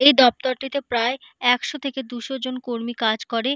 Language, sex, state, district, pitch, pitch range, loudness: Bengali, female, West Bengal, Paschim Medinipur, 255 Hz, 240-270 Hz, -22 LUFS